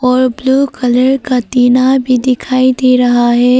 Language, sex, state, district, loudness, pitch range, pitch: Hindi, female, Arunachal Pradesh, Papum Pare, -11 LUFS, 245-260 Hz, 255 Hz